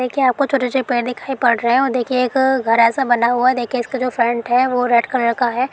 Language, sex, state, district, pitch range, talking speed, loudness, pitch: Hindi, female, Bihar, Araria, 240-260 Hz, 280 wpm, -17 LUFS, 250 Hz